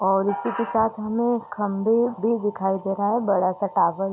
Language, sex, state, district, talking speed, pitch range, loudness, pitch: Hindi, female, Bihar, East Champaran, 220 wpm, 195-225 Hz, -23 LUFS, 205 Hz